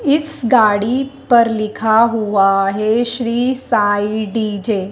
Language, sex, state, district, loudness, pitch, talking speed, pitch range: Hindi, female, Madhya Pradesh, Dhar, -15 LUFS, 220 Hz, 120 wpm, 210-245 Hz